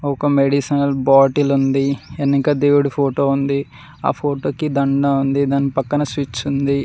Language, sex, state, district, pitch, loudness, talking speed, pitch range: Telugu, male, Telangana, Mahabubabad, 140 Hz, -17 LUFS, 140 wpm, 140-145 Hz